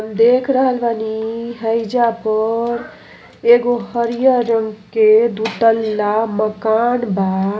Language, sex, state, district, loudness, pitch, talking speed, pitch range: Bhojpuri, female, Uttar Pradesh, Ghazipur, -16 LUFS, 225 Hz, 100 wpm, 220-235 Hz